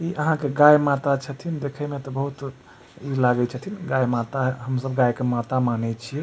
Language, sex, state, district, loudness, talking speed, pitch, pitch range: Maithili, male, Bihar, Supaul, -23 LUFS, 220 wpm, 135 Hz, 125-145 Hz